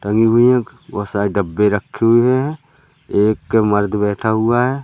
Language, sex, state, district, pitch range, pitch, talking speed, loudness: Hindi, male, Madhya Pradesh, Katni, 105-125 Hz, 110 Hz, 175 wpm, -16 LUFS